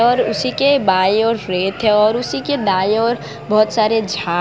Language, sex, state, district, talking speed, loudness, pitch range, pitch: Hindi, female, Gujarat, Valsad, 190 wpm, -16 LUFS, 190-230 Hz, 215 Hz